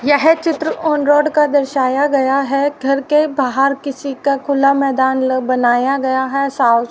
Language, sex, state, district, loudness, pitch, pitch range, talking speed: Hindi, female, Haryana, Rohtak, -15 LUFS, 275 Hz, 265-290 Hz, 175 wpm